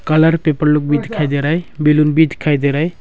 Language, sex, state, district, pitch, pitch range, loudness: Hindi, male, Arunachal Pradesh, Longding, 150 Hz, 145-160 Hz, -15 LUFS